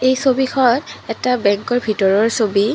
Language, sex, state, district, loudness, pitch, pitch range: Assamese, female, Assam, Kamrup Metropolitan, -16 LUFS, 240 Hz, 215-255 Hz